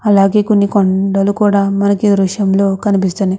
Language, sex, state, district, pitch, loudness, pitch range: Telugu, female, Andhra Pradesh, Krishna, 200 Hz, -13 LUFS, 195-205 Hz